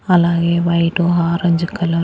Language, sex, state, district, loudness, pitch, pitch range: Telugu, female, Andhra Pradesh, Annamaya, -16 LUFS, 170 Hz, 170-175 Hz